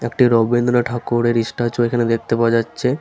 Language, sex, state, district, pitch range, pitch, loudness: Bengali, male, West Bengal, Paschim Medinipur, 115-120 Hz, 120 Hz, -17 LUFS